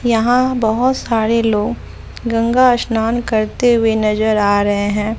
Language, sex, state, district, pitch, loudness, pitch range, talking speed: Hindi, female, Bihar, West Champaran, 225 Hz, -15 LUFS, 215-240 Hz, 140 wpm